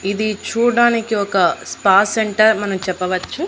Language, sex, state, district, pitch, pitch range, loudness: Telugu, female, Andhra Pradesh, Annamaya, 210 Hz, 195-225 Hz, -16 LUFS